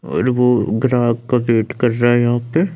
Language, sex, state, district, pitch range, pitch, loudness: Hindi, male, Chandigarh, Chandigarh, 120-125 Hz, 120 Hz, -16 LUFS